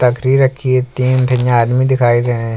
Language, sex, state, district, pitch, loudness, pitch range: Hindi, male, Uttar Pradesh, Jalaun, 125 Hz, -13 LUFS, 120-130 Hz